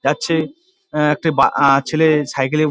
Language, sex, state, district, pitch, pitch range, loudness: Bengali, male, West Bengal, Dakshin Dinajpur, 155 Hz, 140-160 Hz, -16 LUFS